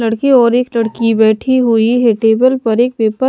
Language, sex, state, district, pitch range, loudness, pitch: Hindi, female, Punjab, Pathankot, 225-250 Hz, -12 LUFS, 230 Hz